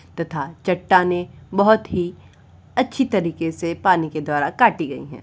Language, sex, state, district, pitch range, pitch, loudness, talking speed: Hindi, female, Uttar Pradesh, Varanasi, 165-195 Hz, 175 Hz, -20 LUFS, 150 wpm